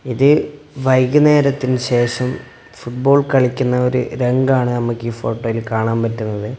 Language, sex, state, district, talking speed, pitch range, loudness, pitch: Malayalam, male, Kerala, Kasaragod, 110 wpm, 120-135 Hz, -16 LUFS, 125 Hz